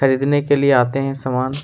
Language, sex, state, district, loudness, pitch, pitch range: Hindi, male, Chhattisgarh, Kabirdham, -17 LUFS, 135 Hz, 130-140 Hz